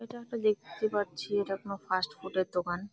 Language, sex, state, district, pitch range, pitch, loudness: Bengali, female, West Bengal, Jalpaiguri, 185-215 Hz, 200 Hz, -33 LUFS